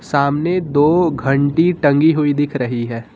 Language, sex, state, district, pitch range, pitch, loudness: Hindi, male, Uttar Pradesh, Lucknow, 140-160 Hz, 145 Hz, -16 LUFS